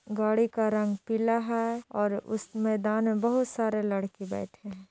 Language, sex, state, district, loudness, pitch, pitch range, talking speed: Hindi, female, Bihar, Jahanabad, -29 LUFS, 215 Hz, 205-230 Hz, 185 wpm